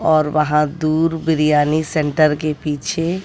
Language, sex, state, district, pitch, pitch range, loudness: Hindi, female, Bihar, West Champaran, 155 Hz, 150-160 Hz, -17 LUFS